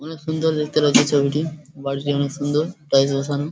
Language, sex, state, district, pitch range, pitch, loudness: Bengali, male, West Bengal, Paschim Medinipur, 140-155 Hz, 150 Hz, -20 LUFS